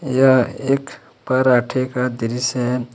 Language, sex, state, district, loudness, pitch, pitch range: Hindi, male, Jharkhand, Ranchi, -18 LUFS, 125 Hz, 120-130 Hz